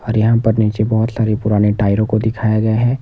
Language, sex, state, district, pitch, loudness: Hindi, male, Himachal Pradesh, Shimla, 110 Hz, -15 LUFS